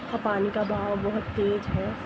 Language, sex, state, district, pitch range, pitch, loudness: Hindi, female, Jharkhand, Jamtara, 205-215 Hz, 205 Hz, -27 LUFS